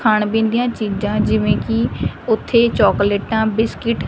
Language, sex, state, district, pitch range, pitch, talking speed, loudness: Punjabi, female, Punjab, Kapurthala, 200-225 Hz, 215 Hz, 145 wpm, -17 LUFS